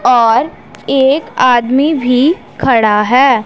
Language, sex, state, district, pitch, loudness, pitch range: Hindi, female, Punjab, Pathankot, 255 Hz, -11 LUFS, 235-275 Hz